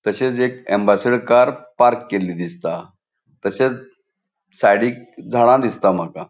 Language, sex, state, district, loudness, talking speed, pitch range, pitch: Konkani, male, Goa, North and South Goa, -18 LUFS, 115 wpm, 100-130 Hz, 120 Hz